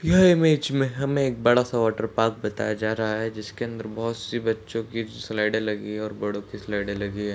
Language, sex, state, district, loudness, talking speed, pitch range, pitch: Hindi, male, Uttar Pradesh, Ghazipur, -25 LUFS, 235 wpm, 105-120 Hz, 110 Hz